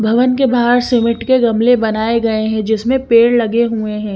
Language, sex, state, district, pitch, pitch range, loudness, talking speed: Hindi, female, Chandigarh, Chandigarh, 230 Hz, 220-245 Hz, -13 LUFS, 200 wpm